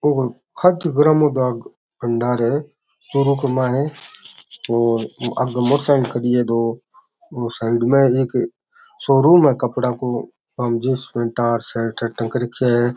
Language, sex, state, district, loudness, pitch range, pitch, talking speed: Rajasthani, male, Rajasthan, Churu, -19 LUFS, 120-140 Hz, 125 Hz, 160 wpm